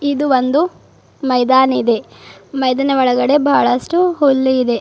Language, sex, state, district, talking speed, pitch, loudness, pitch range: Kannada, female, Karnataka, Bidar, 110 wpm, 265 Hz, -14 LUFS, 255-285 Hz